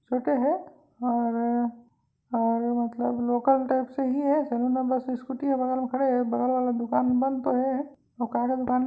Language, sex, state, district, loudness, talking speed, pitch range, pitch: Chhattisgarhi, female, Chhattisgarh, Raigarh, -26 LUFS, 190 wpm, 240-265 Hz, 255 Hz